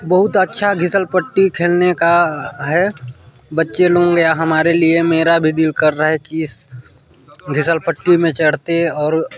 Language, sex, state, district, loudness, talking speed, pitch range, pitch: Hindi, male, Chhattisgarh, Balrampur, -15 LUFS, 155 wpm, 155-175 Hz, 165 Hz